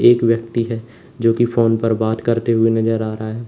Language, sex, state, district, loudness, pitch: Hindi, male, Uttar Pradesh, Lalitpur, -18 LUFS, 115 Hz